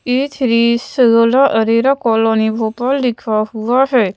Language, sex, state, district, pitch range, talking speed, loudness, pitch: Hindi, female, Madhya Pradesh, Bhopal, 225-260 Hz, 130 wpm, -14 LUFS, 235 Hz